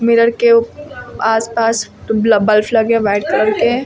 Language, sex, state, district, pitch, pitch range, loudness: Hindi, female, Uttar Pradesh, Lucknow, 225 Hz, 215-235 Hz, -14 LUFS